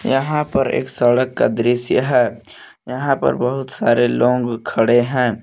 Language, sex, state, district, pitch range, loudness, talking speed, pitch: Hindi, male, Jharkhand, Palamu, 120-130 Hz, -17 LUFS, 155 wpm, 125 Hz